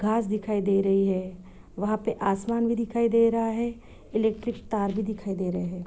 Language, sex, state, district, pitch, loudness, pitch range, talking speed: Hindi, female, Goa, North and South Goa, 215 Hz, -26 LUFS, 195-230 Hz, 205 wpm